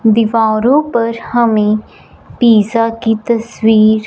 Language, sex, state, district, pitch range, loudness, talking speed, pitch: Hindi, male, Punjab, Fazilka, 220-230 Hz, -12 LUFS, 90 wpm, 225 Hz